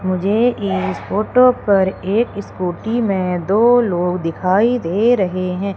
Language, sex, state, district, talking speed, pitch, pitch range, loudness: Hindi, female, Madhya Pradesh, Umaria, 135 wpm, 195 Hz, 185-225 Hz, -17 LUFS